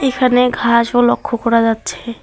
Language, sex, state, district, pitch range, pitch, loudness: Bengali, female, West Bengal, Alipurduar, 235-250 Hz, 240 Hz, -14 LUFS